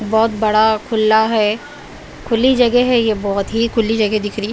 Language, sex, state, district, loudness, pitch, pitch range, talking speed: Hindi, female, Bihar, Kaimur, -15 LUFS, 220 Hz, 215-230 Hz, 185 wpm